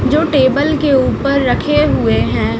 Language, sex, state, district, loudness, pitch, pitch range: Hindi, female, Chhattisgarh, Raipur, -13 LUFS, 280 Hz, 270-300 Hz